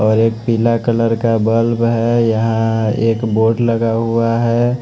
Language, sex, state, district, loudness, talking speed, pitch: Hindi, male, Odisha, Malkangiri, -15 LUFS, 160 wpm, 115 Hz